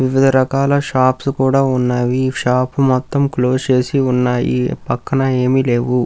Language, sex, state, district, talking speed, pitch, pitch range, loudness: Telugu, male, Andhra Pradesh, Krishna, 130 wpm, 130 Hz, 125-135 Hz, -15 LUFS